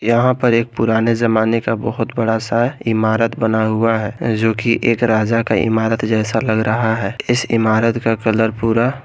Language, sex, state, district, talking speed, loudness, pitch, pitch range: Hindi, male, Jharkhand, Garhwa, 185 wpm, -16 LUFS, 115 Hz, 110-115 Hz